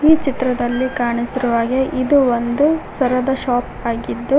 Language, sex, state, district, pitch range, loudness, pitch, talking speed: Kannada, female, Karnataka, Koppal, 240-270 Hz, -18 LUFS, 255 Hz, 125 wpm